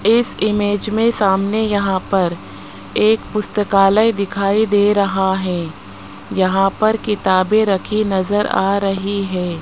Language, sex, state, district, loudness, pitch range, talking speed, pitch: Hindi, male, Rajasthan, Jaipur, -17 LUFS, 185-210 Hz, 125 wpm, 200 Hz